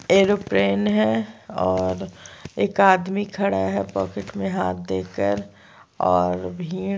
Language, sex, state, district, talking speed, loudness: Hindi, female, Chhattisgarh, Sukma, 110 wpm, -22 LUFS